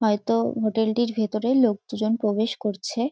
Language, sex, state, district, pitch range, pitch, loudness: Bengali, female, West Bengal, North 24 Parganas, 215-230 Hz, 220 Hz, -24 LUFS